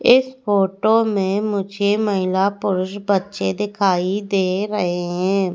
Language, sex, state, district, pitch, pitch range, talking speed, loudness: Hindi, female, Madhya Pradesh, Katni, 200 Hz, 190-205 Hz, 120 wpm, -19 LUFS